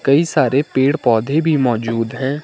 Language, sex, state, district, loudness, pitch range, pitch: Hindi, male, Himachal Pradesh, Shimla, -16 LUFS, 120-145 Hz, 135 Hz